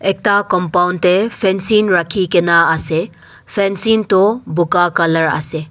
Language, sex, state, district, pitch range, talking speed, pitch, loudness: Nagamese, male, Nagaland, Dimapur, 170-200 Hz, 125 wpm, 180 Hz, -14 LUFS